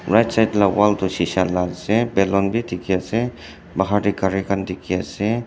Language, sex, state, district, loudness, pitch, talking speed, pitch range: Nagamese, male, Nagaland, Dimapur, -20 LUFS, 100 Hz, 185 wpm, 90-110 Hz